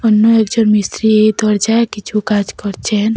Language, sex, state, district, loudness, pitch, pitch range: Bengali, female, Assam, Hailakandi, -13 LUFS, 215 Hz, 210-225 Hz